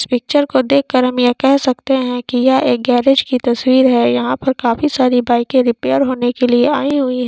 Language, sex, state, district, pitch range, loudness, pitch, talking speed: Hindi, female, Jharkhand, Sahebganj, 245-265 Hz, -14 LUFS, 255 Hz, 240 wpm